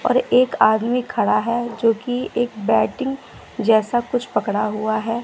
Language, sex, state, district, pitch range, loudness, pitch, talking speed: Hindi, female, Bihar, West Champaran, 220-245 Hz, -20 LUFS, 235 Hz, 160 wpm